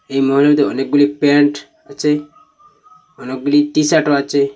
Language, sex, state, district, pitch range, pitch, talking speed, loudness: Bengali, male, Assam, Hailakandi, 140-150 Hz, 145 Hz, 105 wpm, -14 LUFS